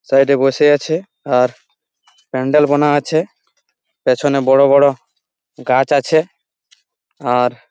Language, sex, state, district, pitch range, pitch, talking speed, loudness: Bengali, male, West Bengal, Malda, 130-145 Hz, 140 Hz, 110 wpm, -15 LUFS